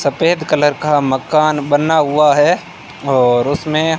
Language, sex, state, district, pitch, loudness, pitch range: Hindi, male, Rajasthan, Bikaner, 150 Hz, -14 LUFS, 140-155 Hz